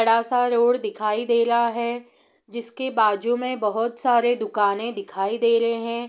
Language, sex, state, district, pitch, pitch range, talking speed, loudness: Hindi, female, Bihar, East Champaran, 235 Hz, 220-240 Hz, 150 wpm, -22 LUFS